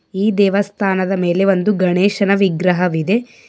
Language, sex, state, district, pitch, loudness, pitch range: Kannada, female, Karnataka, Bidar, 195 Hz, -16 LUFS, 180-200 Hz